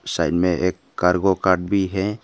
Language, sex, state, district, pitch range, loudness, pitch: Hindi, male, Arunachal Pradesh, Papum Pare, 90-95 Hz, -20 LUFS, 95 Hz